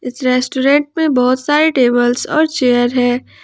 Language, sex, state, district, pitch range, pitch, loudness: Hindi, male, Jharkhand, Ranchi, 250-295 Hz, 255 Hz, -14 LUFS